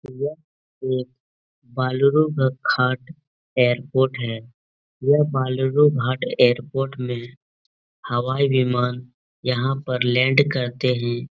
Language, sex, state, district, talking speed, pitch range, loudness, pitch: Hindi, male, Uttar Pradesh, Etah, 95 wpm, 125-135 Hz, -21 LUFS, 130 Hz